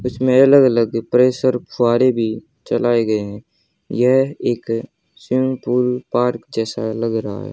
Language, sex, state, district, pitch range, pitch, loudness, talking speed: Hindi, male, Haryana, Jhajjar, 115-130 Hz, 120 Hz, -17 LUFS, 145 wpm